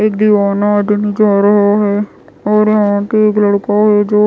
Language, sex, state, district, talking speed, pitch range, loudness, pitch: Hindi, female, Bihar, West Champaran, 180 wpm, 205-210 Hz, -12 LUFS, 210 Hz